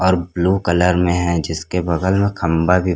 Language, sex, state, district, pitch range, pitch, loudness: Hindi, male, Chhattisgarh, Korba, 85-90 Hz, 90 Hz, -17 LUFS